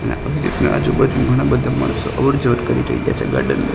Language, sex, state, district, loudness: Gujarati, male, Gujarat, Gandhinagar, -17 LUFS